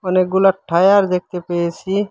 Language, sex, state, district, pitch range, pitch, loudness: Bengali, male, Assam, Hailakandi, 175-195 Hz, 185 Hz, -16 LUFS